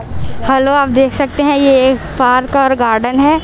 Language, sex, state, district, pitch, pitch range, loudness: Hindi, female, Chhattisgarh, Raipur, 265 Hz, 260-280 Hz, -12 LUFS